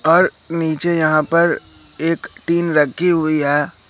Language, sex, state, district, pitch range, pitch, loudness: Hindi, male, Madhya Pradesh, Katni, 155-170 Hz, 165 Hz, -16 LUFS